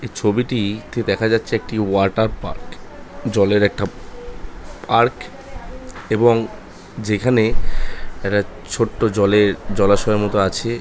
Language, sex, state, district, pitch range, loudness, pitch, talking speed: Bengali, male, West Bengal, North 24 Parganas, 100-115 Hz, -19 LUFS, 105 Hz, 110 wpm